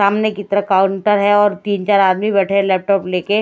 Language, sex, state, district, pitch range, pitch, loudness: Hindi, female, Chhattisgarh, Raipur, 195-205 Hz, 200 Hz, -15 LUFS